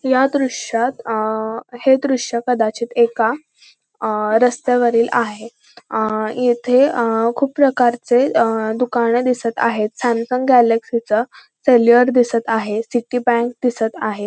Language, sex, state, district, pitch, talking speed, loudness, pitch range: Marathi, female, Maharashtra, Pune, 240 Hz, 120 wpm, -17 LUFS, 225-250 Hz